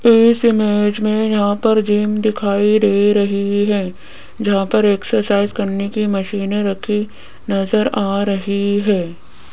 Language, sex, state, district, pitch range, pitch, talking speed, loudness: Hindi, female, Rajasthan, Jaipur, 200-215 Hz, 205 Hz, 130 wpm, -16 LUFS